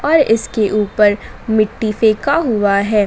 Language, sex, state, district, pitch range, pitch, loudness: Hindi, female, Jharkhand, Garhwa, 210-225 Hz, 215 Hz, -15 LUFS